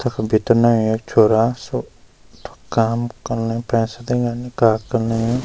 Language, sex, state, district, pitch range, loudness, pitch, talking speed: Garhwali, male, Uttarakhand, Uttarkashi, 115-120 Hz, -19 LUFS, 115 Hz, 130 wpm